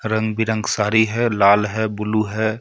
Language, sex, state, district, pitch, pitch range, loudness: Hindi, male, Jharkhand, Ranchi, 110 Hz, 105-110 Hz, -19 LUFS